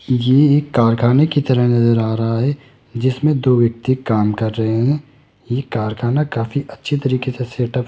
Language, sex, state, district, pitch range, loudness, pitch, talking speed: Hindi, male, Rajasthan, Jaipur, 115-140 Hz, -17 LUFS, 125 Hz, 185 wpm